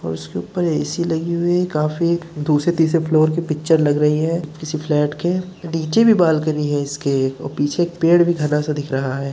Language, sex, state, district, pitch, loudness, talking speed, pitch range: Hindi, male, Uttar Pradesh, Muzaffarnagar, 155 Hz, -19 LUFS, 210 wpm, 150-170 Hz